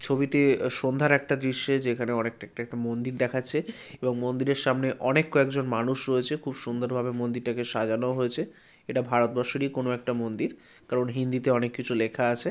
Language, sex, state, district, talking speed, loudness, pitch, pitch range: Bengali, male, West Bengal, Kolkata, 170 wpm, -27 LUFS, 125 Hz, 120-140 Hz